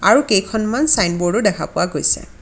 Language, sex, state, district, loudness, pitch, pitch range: Assamese, female, Assam, Kamrup Metropolitan, -16 LUFS, 220 Hz, 190-275 Hz